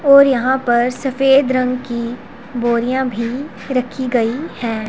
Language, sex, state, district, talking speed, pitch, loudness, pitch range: Hindi, female, Punjab, Pathankot, 135 wpm, 250 Hz, -17 LUFS, 240-265 Hz